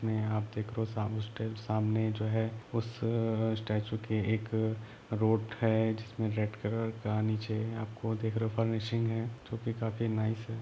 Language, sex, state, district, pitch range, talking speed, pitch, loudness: Hindi, male, Jharkhand, Sahebganj, 110-115 Hz, 205 wpm, 110 Hz, -33 LUFS